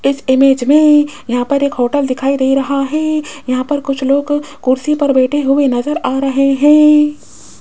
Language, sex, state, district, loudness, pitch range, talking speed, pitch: Hindi, female, Rajasthan, Jaipur, -13 LUFS, 265-295 Hz, 180 wpm, 275 Hz